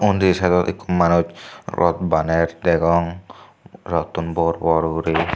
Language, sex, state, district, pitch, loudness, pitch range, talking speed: Chakma, male, Tripura, Dhalai, 85 Hz, -19 LUFS, 80-90 Hz, 135 wpm